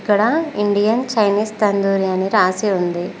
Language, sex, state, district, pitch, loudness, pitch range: Telugu, female, Telangana, Mahabubabad, 205 Hz, -17 LUFS, 190-215 Hz